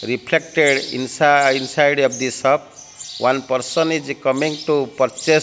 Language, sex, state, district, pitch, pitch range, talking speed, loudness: English, male, Odisha, Malkangiri, 135 Hz, 130-150 Hz, 145 wpm, -18 LUFS